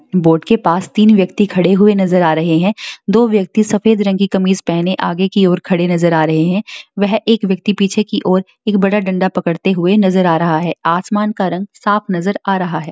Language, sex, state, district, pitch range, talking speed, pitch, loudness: Hindi, female, Bihar, Jahanabad, 175-210 Hz, 230 wpm, 190 Hz, -14 LUFS